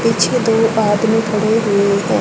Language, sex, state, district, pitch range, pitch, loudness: Hindi, female, Haryana, Charkhi Dadri, 205-225 Hz, 220 Hz, -15 LUFS